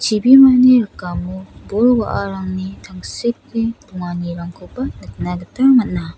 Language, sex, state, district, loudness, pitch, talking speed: Garo, female, Meghalaya, South Garo Hills, -16 LUFS, 180 Hz, 80 wpm